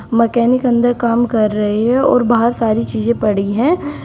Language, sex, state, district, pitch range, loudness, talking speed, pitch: Hindi, female, Uttar Pradesh, Shamli, 220-245 Hz, -14 LUFS, 175 wpm, 235 Hz